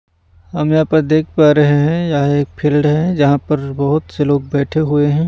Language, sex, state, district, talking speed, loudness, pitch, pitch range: Hindi, male, Punjab, Pathankot, 215 wpm, -14 LUFS, 150 Hz, 145-155 Hz